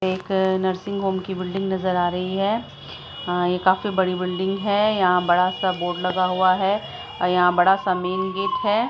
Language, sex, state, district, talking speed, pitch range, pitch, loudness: Hindi, female, Bihar, Saharsa, 180 wpm, 180-195 Hz, 185 Hz, -21 LUFS